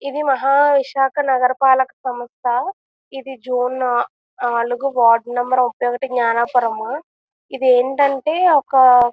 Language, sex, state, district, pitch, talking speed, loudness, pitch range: Telugu, female, Andhra Pradesh, Visakhapatnam, 255 Hz, 120 wpm, -17 LUFS, 245-275 Hz